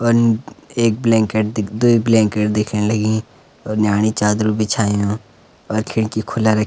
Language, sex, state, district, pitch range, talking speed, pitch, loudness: Garhwali, male, Uttarakhand, Uttarkashi, 105-115 Hz, 145 wpm, 110 Hz, -17 LUFS